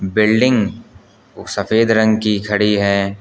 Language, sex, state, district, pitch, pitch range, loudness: Hindi, male, Uttar Pradesh, Lucknow, 105 Hz, 100-110 Hz, -15 LUFS